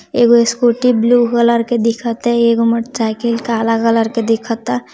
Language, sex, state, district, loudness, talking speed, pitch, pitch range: Hindi, female, Bihar, Gopalganj, -14 LUFS, 205 wpm, 230 Hz, 230-235 Hz